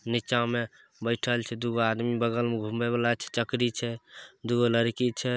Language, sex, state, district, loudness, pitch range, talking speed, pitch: Maithili, male, Bihar, Samastipur, -28 LUFS, 115-120 Hz, 190 wpm, 120 Hz